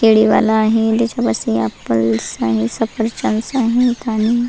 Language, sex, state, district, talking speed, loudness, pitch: Marathi, female, Maharashtra, Nagpur, 120 wpm, -16 LUFS, 220 Hz